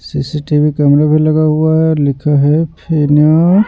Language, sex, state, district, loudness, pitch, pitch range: Hindi, male, Bihar, Patna, -12 LUFS, 150 Hz, 150-160 Hz